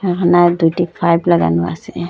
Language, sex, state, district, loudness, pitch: Bengali, female, Assam, Hailakandi, -14 LUFS, 170 Hz